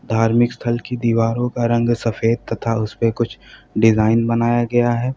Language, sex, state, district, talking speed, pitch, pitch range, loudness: Hindi, male, Uttar Pradesh, Lalitpur, 160 wpm, 115 Hz, 115-120 Hz, -18 LUFS